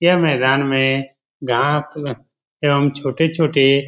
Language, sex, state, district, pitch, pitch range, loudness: Hindi, male, Bihar, Lakhisarai, 140 Hz, 135-150 Hz, -18 LUFS